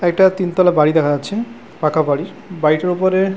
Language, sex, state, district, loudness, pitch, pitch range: Bengali, male, West Bengal, Purulia, -16 LUFS, 180 Hz, 155-190 Hz